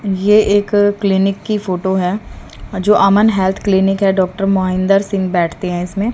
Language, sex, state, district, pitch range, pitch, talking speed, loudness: Hindi, female, Haryana, Jhajjar, 190-205 Hz, 195 Hz, 165 wpm, -14 LUFS